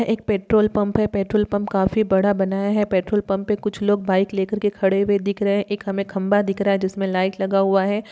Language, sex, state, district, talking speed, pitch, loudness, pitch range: Hindi, female, Uttar Pradesh, Etah, 250 wpm, 200 Hz, -20 LUFS, 195-210 Hz